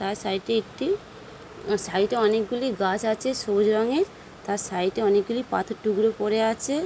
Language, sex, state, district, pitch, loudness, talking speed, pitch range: Bengali, female, West Bengal, Dakshin Dinajpur, 215 Hz, -25 LUFS, 185 wpm, 200-235 Hz